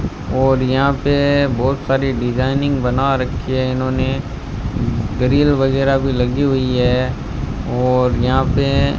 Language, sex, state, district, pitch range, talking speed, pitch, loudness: Hindi, male, Rajasthan, Bikaner, 125-135 Hz, 135 wpm, 130 Hz, -17 LUFS